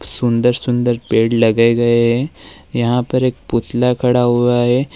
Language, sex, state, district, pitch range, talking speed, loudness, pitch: Hindi, male, Uttar Pradesh, Lalitpur, 120-125 Hz, 155 wpm, -15 LUFS, 120 Hz